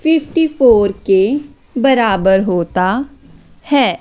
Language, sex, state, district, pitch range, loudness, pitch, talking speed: Hindi, female, Chandigarh, Chandigarh, 190-285 Hz, -14 LUFS, 245 Hz, 90 wpm